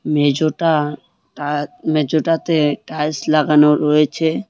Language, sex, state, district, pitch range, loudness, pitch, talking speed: Bengali, male, West Bengal, Cooch Behar, 150-160 Hz, -17 LUFS, 150 Hz, 80 wpm